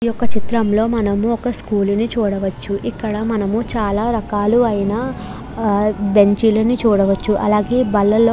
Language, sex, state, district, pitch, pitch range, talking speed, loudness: Telugu, female, Andhra Pradesh, Krishna, 215 Hz, 205-230 Hz, 115 wpm, -17 LUFS